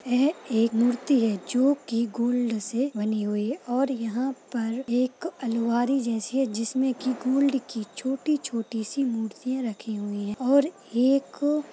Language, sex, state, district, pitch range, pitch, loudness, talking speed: Hindi, female, Bihar, Purnia, 225-270 Hz, 245 Hz, -26 LUFS, 160 wpm